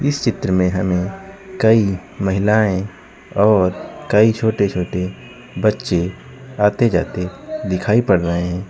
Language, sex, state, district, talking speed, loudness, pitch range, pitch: Hindi, male, Uttar Pradesh, Lucknow, 110 wpm, -18 LUFS, 90-110 Hz, 100 Hz